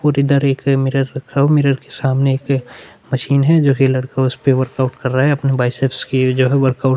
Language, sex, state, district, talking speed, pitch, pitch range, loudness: Hindi, male, Chhattisgarh, Korba, 225 wpm, 135 Hz, 130-140 Hz, -16 LUFS